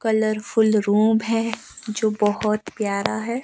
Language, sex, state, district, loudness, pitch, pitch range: Hindi, female, Himachal Pradesh, Shimla, -21 LUFS, 220 Hz, 210-225 Hz